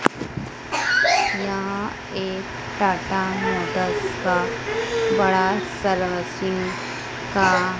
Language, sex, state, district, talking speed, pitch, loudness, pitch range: Hindi, female, Madhya Pradesh, Dhar, 60 wpm, 190 Hz, -22 LUFS, 190-200 Hz